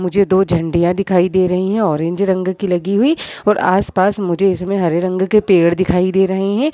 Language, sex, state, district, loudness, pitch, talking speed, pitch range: Hindi, female, Bihar, East Champaran, -15 LUFS, 190 Hz, 215 wpm, 180-200 Hz